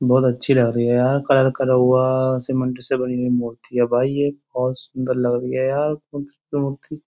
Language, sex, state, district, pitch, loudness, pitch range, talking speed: Hindi, male, Uttar Pradesh, Jyotiba Phule Nagar, 130 Hz, -20 LUFS, 125-140 Hz, 205 wpm